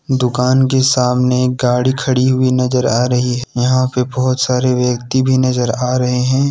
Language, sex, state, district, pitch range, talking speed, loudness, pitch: Hindi, male, Jharkhand, Deoghar, 125-130 Hz, 195 wpm, -14 LUFS, 125 Hz